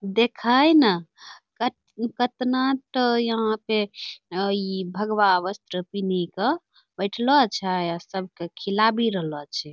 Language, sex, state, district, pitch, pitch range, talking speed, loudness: Angika, female, Bihar, Bhagalpur, 210 Hz, 185-240 Hz, 125 wpm, -23 LUFS